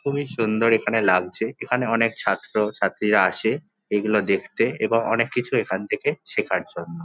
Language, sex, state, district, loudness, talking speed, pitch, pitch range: Bengali, male, West Bengal, Jhargram, -22 LUFS, 155 wpm, 110 Hz, 105-125 Hz